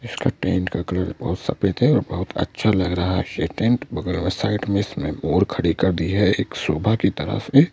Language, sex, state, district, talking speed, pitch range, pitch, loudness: Hindi, male, Madhya Pradesh, Bhopal, 235 wpm, 90-105 Hz, 95 Hz, -21 LUFS